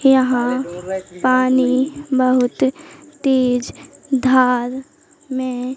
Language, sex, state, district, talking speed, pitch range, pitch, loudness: Hindi, female, Madhya Pradesh, Katni, 60 wpm, 250-270 Hz, 260 Hz, -18 LUFS